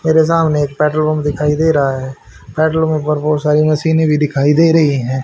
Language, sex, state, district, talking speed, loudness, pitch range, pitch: Hindi, male, Haryana, Rohtak, 205 wpm, -14 LUFS, 145-160 Hz, 150 Hz